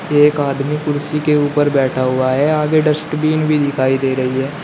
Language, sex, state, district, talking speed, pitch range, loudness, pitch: Hindi, male, Uttar Pradesh, Shamli, 195 wpm, 135-150 Hz, -16 LUFS, 145 Hz